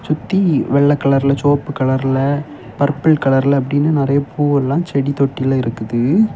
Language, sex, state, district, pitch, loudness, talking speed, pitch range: Tamil, male, Tamil Nadu, Kanyakumari, 140 Hz, -16 LUFS, 125 wpm, 135-145 Hz